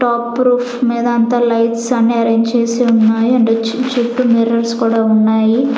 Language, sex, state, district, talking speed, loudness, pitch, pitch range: Telugu, female, Andhra Pradesh, Sri Satya Sai, 145 wpm, -13 LUFS, 235 Hz, 230-245 Hz